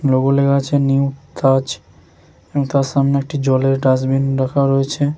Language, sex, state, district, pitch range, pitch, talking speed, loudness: Bengali, male, West Bengal, Jhargram, 130-140 Hz, 135 Hz, 150 wpm, -16 LUFS